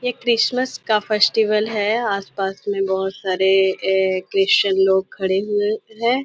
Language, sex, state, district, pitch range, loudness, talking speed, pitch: Hindi, female, Maharashtra, Nagpur, 190-220 Hz, -19 LUFS, 155 wpm, 200 Hz